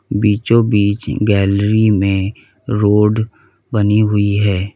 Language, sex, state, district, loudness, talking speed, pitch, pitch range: Hindi, male, Uttar Pradesh, Lalitpur, -15 LUFS, 100 wpm, 105 Hz, 100-110 Hz